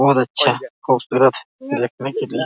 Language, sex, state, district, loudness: Hindi, male, Bihar, Araria, -18 LUFS